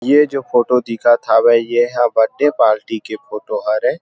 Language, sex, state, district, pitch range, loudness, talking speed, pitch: Chhattisgarhi, male, Chhattisgarh, Rajnandgaon, 110-125 Hz, -15 LUFS, 180 wpm, 120 Hz